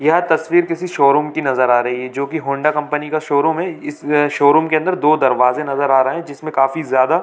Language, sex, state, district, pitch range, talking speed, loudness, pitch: Hindi, male, Jharkhand, Sahebganj, 140-160 Hz, 240 wpm, -16 LUFS, 150 Hz